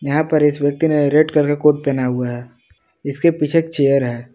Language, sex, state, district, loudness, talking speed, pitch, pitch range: Hindi, male, Jharkhand, Palamu, -16 LUFS, 235 wpm, 145 Hz, 125-150 Hz